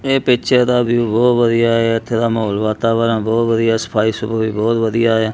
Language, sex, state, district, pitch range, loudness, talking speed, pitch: Punjabi, male, Punjab, Kapurthala, 110-120 Hz, -15 LUFS, 215 wpm, 115 Hz